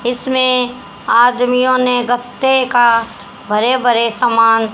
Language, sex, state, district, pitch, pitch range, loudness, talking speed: Hindi, female, Haryana, Jhajjar, 245 Hz, 230-250 Hz, -13 LUFS, 100 wpm